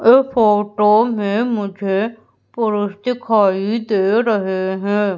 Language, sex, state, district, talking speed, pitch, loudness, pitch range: Hindi, female, Madhya Pradesh, Umaria, 105 wpm, 210 Hz, -17 LUFS, 200-230 Hz